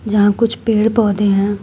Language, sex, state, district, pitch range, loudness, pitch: Hindi, female, Uttar Pradesh, Shamli, 205-220 Hz, -15 LUFS, 205 Hz